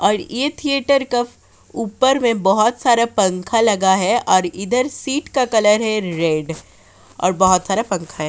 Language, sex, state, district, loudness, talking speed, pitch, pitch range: Hindi, female, Uttar Pradesh, Jyotiba Phule Nagar, -17 LUFS, 165 wpm, 210 Hz, 185-245 Hz